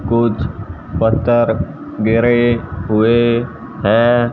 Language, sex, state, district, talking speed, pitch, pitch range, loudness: Hindi, male, Haryana, Jhajjar, 70 wpm, 115 Hz, 110-120 Hz, -15 LUFS